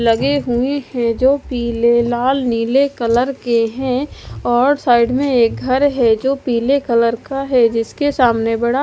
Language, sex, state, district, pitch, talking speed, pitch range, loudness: Hindi, female, Haryana, Charkhi Dadri, 245 Hz, 165 wpm, 235-270 Hz, -16 LUFS